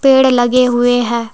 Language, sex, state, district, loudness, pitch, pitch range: Hindi, female, Jharkhand, Deoghar, -12 LUFS, 245 Hz, 240-255 Hz